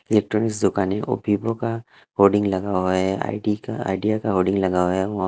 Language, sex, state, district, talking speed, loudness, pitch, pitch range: Hindi, male, Haryana, Rohtak, 195 wpm, -22 LUFS, 100 Hz, 95-110 Hz